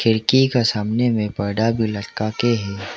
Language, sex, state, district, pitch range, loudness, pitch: Hindi, male, Arunachal Pradesh, Lower Dibang Valley, 105-120 Hz, -20 LUFS, 110 Hz